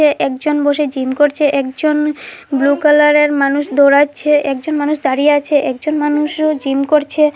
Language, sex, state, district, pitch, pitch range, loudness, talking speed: Bengali, female, Assam, Hailakandi, 290 Hz, 280-300 Hz, -14 LUFS, 145 wpm